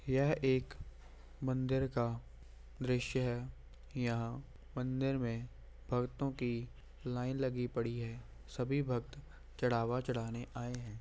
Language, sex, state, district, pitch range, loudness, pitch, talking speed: Hindi, male, Bihar, Samastipur, 115-130 Hz, -38 LUFS, 125 Hz, 115 wpm